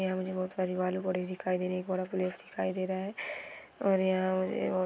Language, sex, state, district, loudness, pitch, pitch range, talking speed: Hindi, female, Bihar, Gopalganj, -33 LUFS, 185 Hz, 185-190 Hz, 245 wpm